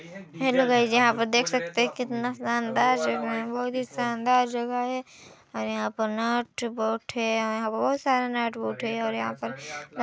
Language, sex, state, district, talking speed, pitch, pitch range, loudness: Hindi, female, Chhattisgarh, Balrampur, 185 wpm, 235 Hz, 225-245 Hz, -26 LUFS